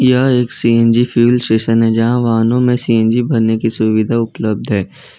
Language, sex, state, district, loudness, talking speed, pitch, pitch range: Hindi, male, Gujarat, Valsad, -13 LUFS, 175 wpm, 115 Hz, 110-120 Hz